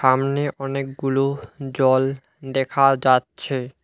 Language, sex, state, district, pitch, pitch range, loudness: Bengali, male, West Bengal, Alipurduar, 135 Hz, 130-135 Hz, -21 LUFS